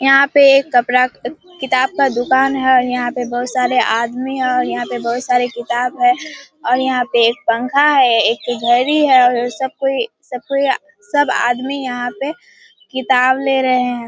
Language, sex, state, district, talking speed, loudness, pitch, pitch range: Hindi, female, Bihar, Kishanganj, 185 wpm, -15 LUFS, 255 Hz, 245-275 Hz